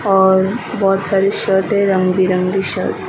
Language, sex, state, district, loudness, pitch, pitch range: Hindi, female, Maharashtra, Mumbai Suburban, -15 LUFS, 195 Hz, 190-195 Hz